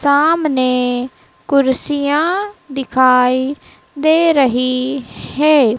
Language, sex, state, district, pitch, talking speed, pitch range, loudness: Hindi, female, Madhya Pradesh, Dhar, 275 Hz, 60 wpm, 255-300 Hz, -15 LUFS